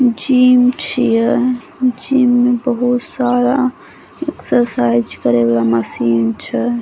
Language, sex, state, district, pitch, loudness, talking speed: Maithili, female, Bihar, Saharsa, 245 Hz, -15 LUFS, 95 wpm